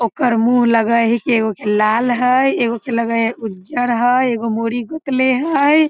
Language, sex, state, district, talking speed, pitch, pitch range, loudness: Maithili, female, Bihar, Samastipur, 205 wpm, 240 Hz, 230-255 Hz, -16 LUFS